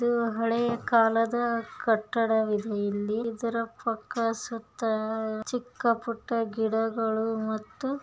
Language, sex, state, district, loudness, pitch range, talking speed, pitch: Kannada, female, Karnataka, Bijapur, -28 LUFS, 220-235 Hz, 75 wpm, 230 Hz